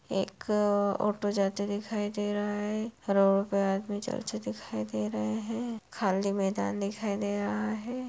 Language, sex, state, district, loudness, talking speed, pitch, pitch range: Hindi, female, Bihar, Purnia, -31 LUFS, 155 wpm, 205 Hz, 195-210 Hz